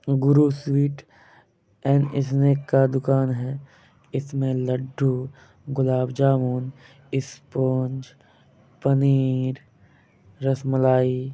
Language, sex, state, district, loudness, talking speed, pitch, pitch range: Hindi, male, Bihar, Kishanganj, -23 LUFS, 70 wpm, 135 Hz, 130-135 Hz